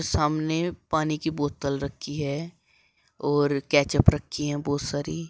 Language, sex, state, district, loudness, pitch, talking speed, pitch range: Hindi, female, Uttar Pradesh, Shamli, -26 LUFS, 145 Hz, 135 wpm, 140-155 Hz